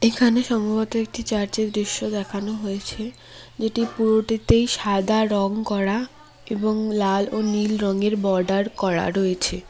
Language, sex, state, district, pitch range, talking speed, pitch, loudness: Bengali, female, West Bengal, Cooch Behar, 200-225 Hz, 125 wpm, 215 Hz, -22 LUFS